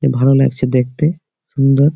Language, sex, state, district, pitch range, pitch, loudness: Bengali, male, West Bengal, Malda, 130-145 Hz, 135 Hz, -15 LUFS